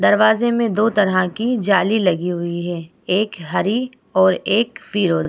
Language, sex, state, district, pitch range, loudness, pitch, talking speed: Hindi, female, Uttar Pradesh, Muzaffarnagar, 180-220 Hz, -18 LUFS, 200 Hz, 170 wpm